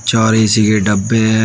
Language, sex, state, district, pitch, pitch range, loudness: Hindi, male, Uttar Pradesh, Shamli, 110 Hz, 105-110 Hz, -12 LUFS